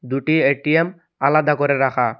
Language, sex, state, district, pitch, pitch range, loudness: Bengali, male, Assam, Hailakandi, 145 Hz, 135-160 Hz, -18 LUFS